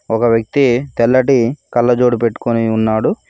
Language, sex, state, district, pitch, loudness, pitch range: Telugu, male, Telangana, Mahabubabad, 120 Hz, -14 LUFS, 115-125 Hz